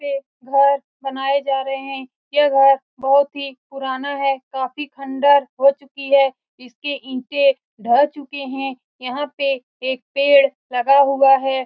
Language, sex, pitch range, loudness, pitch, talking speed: Hindi, female, 265-280 Hz, -18 LUFS, 275 Hz, 150 wpm